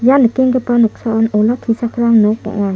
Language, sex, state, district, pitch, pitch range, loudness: Garo, female, Meghalaya, South Garo Hills, 230 Hz, 215-245 Hz, -14 LUFS